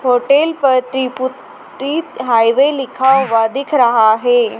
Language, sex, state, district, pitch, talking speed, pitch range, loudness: Hindi, female, Madhya Pradesh, Dhar, 260 Hz, 130 wpm, 240-275 Hz, -14 LUFS